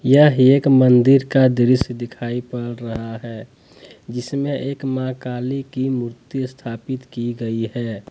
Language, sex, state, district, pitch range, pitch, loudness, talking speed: Hindi, male, Jharkhand, Deoghar, 120-130 Hz, 125 Hz, -19 LUFS, 150 wpm